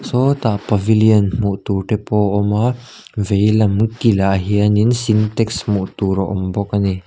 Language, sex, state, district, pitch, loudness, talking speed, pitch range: Mizo, male, Mizoram, Aizawl, 105 Hz, -16 LUFS, 160 wpm, 100-110 Hz